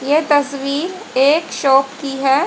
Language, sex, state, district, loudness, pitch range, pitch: Hindi, female, Haryana, Charkhi Dadri, -16 LUFS, 270-300 Hz, 280 Hz